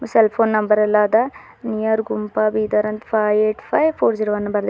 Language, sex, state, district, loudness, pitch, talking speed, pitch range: Kannada, female, Karnataka, Bidar, -18 LUFS, 215 Hz, 205 wpm, 210-225 Hz